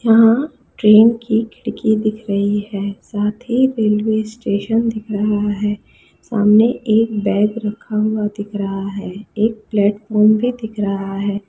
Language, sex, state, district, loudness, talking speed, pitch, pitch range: Hindi, female, Bihar, Sitamarhi, -17 LUFS, 145 wpm, 215 Hz, 205-220 Hz